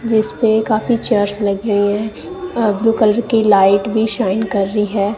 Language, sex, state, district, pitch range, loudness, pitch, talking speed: Hindi, female, Punjab, Kapurthala, 205-225 Hz, -15 LUFS, 215 Hz, 185 wpm